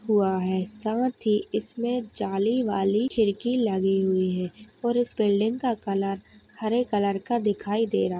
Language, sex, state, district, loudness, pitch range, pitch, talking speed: Hindi, female, Uttar Pradesh, Hamirpur, -26 LUFS, 195-235 Hz, 210 Hz, 170 wpm